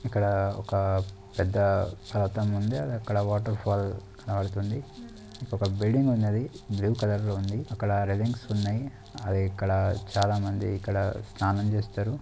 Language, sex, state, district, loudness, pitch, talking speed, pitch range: Telugu, male, Andhra Pradesh, Chittoor, -28 LUFS, 100 Hz, 130 wpm, 100-110 Hz